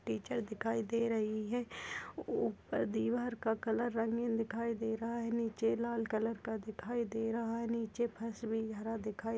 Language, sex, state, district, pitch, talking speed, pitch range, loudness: Hindi, female, Maharashtra, Pune, 225 Hz, 165 wpm, 225-230 Hz, -37 LUFS